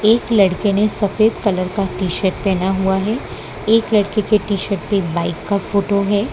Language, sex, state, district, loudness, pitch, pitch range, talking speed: Hindi, female, Gujarat, Valsad, -17 LUFS, 200 Hz, 190-210 Hz, 200 wpm